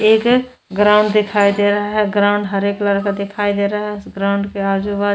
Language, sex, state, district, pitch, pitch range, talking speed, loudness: Hindi, female, Goa, North and South Goa, 205 Hz, 200-210 Hz, 220 wpm, -16 LUFS